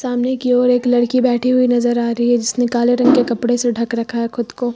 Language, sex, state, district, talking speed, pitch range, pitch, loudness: Hindi, female, Uttar Pradesh, Lucknow, 275 wpm, 235-250 Hz, 245 Hz, -16 LUFS